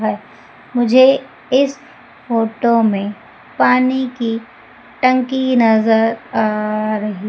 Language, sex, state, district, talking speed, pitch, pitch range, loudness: Hindi, female, Madhya Pradesh, Umaria, 90 wpm, 230 Hz, 220-255 Hz, -16 LUFS